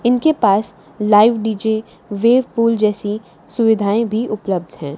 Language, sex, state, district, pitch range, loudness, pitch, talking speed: Hindi, female, Haryana, Charkhi Dadri, 205-230 Hz, -16 LUFS, 220 Hz, 130 wpm